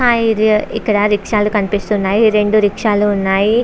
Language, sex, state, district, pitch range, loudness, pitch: Telugu, female, Andhra Pradesh, Visakhapatnam, 205-220 Hz, -14 LUFS, 210 Hz